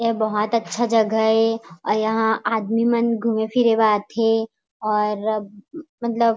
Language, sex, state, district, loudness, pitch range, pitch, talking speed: Chhattisgarhi, female, Chhattisgarh, Raigarh, -20 LUFS, 215-230 Hz, 225 Hz, 160 wpm